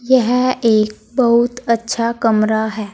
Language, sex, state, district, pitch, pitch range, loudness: Hindi, female, Uttar Pradesh, Saharanpur, 230 Hz, 220-245 Hz, -16 LUFS